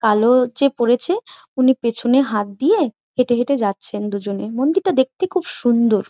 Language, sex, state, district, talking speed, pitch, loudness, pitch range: Bengali, female, West Bengal, Malda, 165 wpm, 250 Hz, -18 LUFS, 215-280 Hz